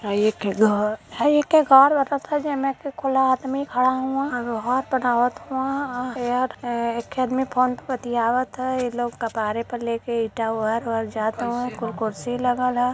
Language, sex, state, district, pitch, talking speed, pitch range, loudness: Bhojpuri, female, Uttar Pradesh, Varanasi, 245 Hz, 170 wpm, 230-265 Hz, -22 LUFS